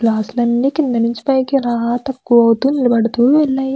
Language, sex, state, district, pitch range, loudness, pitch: Telugu, female, Andhra Pradesh, Krishna, 235-270 Hz, -15 LUFS, 245 Hz